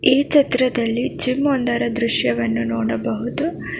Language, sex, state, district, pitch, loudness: Kannada, female, Karnataka, Bangalore, 235 Hz, -19 LUFS